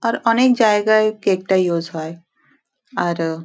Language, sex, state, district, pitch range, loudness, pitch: Bengali, female, West Bengal, Dakshin Dinajpur, 170-215 Hz, -17 LUFS, 190 Hz